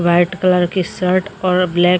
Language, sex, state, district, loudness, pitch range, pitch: Hindi, female, Jharkhand, Sahebganj, -16 LUFS, 175-185 Hz, 180 Hz